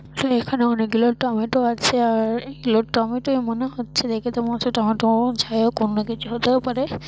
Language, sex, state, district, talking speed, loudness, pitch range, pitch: Bengali, female, West Bengal, Paschim Medinipur, 180 wpm, -21 LUFS, 225-250 Hz, 235 Hz